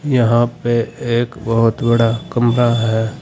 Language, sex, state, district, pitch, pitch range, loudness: Hindi, male, Uttar Pradesh, Saharanpur, 120 Hz, 115-120 Hz, -16 LUFS